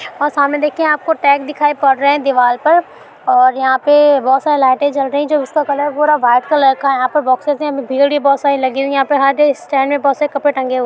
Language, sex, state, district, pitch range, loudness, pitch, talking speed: Hindi, female, Uttar Pradesh, Budaun, 270-295 Hz, -13 LUFS, 285 Hz, 300 wpm